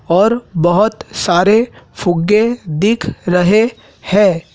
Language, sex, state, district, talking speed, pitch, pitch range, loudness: Hindi, male, Madhya Pradesh, Dhar, 90 wpm, 200 Hz, 175-220 Hz, -14 LUFS